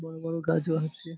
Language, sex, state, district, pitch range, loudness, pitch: Bengali, male, West Bengal, Paschim Medinipur, 160-165 Hz, -29 LUFS, 165 Hz